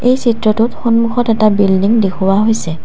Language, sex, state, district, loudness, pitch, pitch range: Assamese, female, Assam, Kamrup Metropolitan, -13 LUFS, 220 Hz, 195-230 Hz